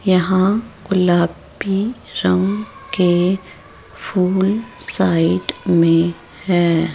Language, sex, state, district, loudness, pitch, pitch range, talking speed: Hindi, female, Rajasthan, Jaipur, -17 LUFS, 185 Hz, 170-195 Hz, 70 wpm